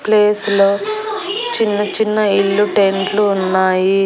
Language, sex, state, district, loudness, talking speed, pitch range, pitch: Telugu, female, Andhra Pradesh, Annamaya, -15 LUFS, 105 wpm, 195-215 Hz, 205 Hz